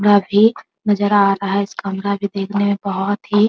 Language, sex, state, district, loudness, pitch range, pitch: Hindi, female, Bihar, Araria, -17 LUFS, 200-205 Hz, 200 Hz